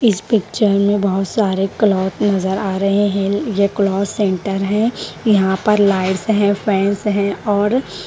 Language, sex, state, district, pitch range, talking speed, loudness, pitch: Hindi, female, Haryana, Rohtak, 195-210 Hz, 155 wpm, -17 LUFS, 200 Hz